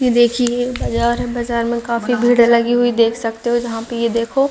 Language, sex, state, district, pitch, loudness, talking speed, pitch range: Hindi, female, Chhattisgarh, Raigarh, 235 Hz, -16 LUFS, 255 wpm, 235-245 Hz